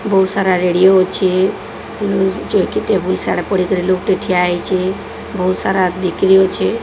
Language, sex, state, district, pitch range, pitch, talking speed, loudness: Odia, female, Odisha, Sambalpur, 185-190 Hz, 190 Hz, 140 wpm, -15 LUFS